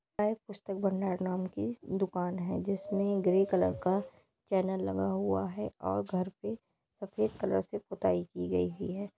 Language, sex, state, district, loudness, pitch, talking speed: Hindi, female, Uttar Pradesh, Deoria, -33 LUFS, 185 Hz, 155 wpm